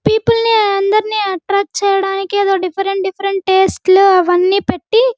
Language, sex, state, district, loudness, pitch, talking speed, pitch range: Telugu, female, Andhra Pradesh, Guntur, -13 LUFS, 390 Hz, 150 wpm, 385-415 Hz